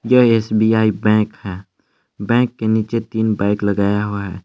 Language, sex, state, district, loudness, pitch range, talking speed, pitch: Hindi, male, Jharkhand, Palamu, -17 LUFS, 100-110 Hz, 160 wpm, 110 Hz